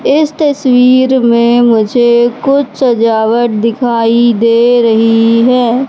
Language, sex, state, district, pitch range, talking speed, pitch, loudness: Hindi, female, Madhya Pradesh, Katni, 230-255 Hz, 100 wpm, 240 Hz, -9 LUFS